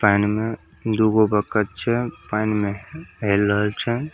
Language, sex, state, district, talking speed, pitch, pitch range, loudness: Maithili, male, Bihar, Samastipur, 160 wpm, 105 Hz, 105-115 Hz, -22 LUFS